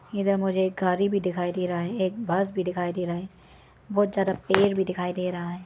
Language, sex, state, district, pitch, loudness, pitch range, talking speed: Hindi, female, Arunachal Pradesh, Lower Dibang Valley, 185 Hz, -26 LUFS, 180-195 Hz, 255 wpm